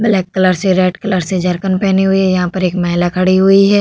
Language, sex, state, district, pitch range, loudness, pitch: Hindi, female, Uttar Pradesh, Hamirpur, 180-195 Hz, -13 LUFS, 185 Hz